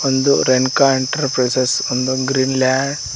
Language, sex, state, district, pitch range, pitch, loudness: Kannada, male, Karnataka, Koppal, 130-135 Hz, 130 Hz, -16 LUFS